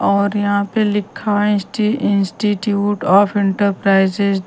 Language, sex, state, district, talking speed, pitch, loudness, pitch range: Hindi, female, Bihar, Patna, 135 wpm, 205 Hz, -16 LUFS, 200-205 Hz